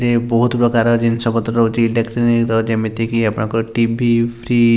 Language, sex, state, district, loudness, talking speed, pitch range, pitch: Odia, male, Odisha, Nuapada, -16 LUFS, 125 wpm, 115-120 Hz, 115 Hz